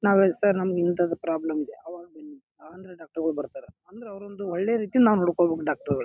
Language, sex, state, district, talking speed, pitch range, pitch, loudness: Kannada, male, Karnataka, Bijapur, 210 wpm, 165-205 Hz, 180 Hz, -25 LUFS